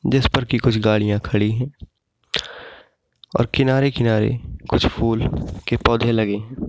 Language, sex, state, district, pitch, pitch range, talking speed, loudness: Hindi, male, Uttar Pradesh, Ghazipur, 115 Hz, 110-135 Hz, 135 wpm, -20 LUFS